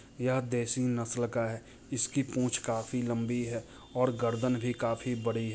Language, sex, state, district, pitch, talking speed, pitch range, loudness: Hindi, male, Bihar, Muzaffarpur, 120 Hz, 175 wpm, 115-125 Hz, -32 LUFS